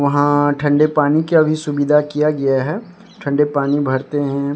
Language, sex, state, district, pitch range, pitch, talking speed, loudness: Hindi, male, Odisha, Sambalpur, 145-150 Hz, 145 Hz, 170 wpm, -16 LUFS